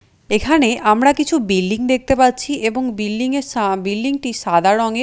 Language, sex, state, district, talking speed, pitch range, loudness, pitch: Bengali, female, Odisha, Nuapada, 165 wpm, 210-265 Hz, -17 LUFS, 235 Hz